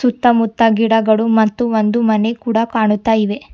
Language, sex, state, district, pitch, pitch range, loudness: Kannada, female, Karnataka, Bidar, 225 Hz, 220-230 Hz, -15 LUFS